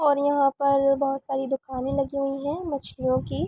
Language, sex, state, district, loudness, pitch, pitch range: Hindi, female, Uttar Pradesh, Varanasi, -25 LUFS, 275 Hz, 270-280 Hz